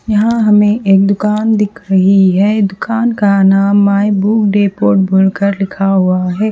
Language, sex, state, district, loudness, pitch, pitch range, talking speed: Hindi, female, Haryana, Charkhi Dadri, -11 LUFS, 200 Hz, 195-210 Hz, 140 wpm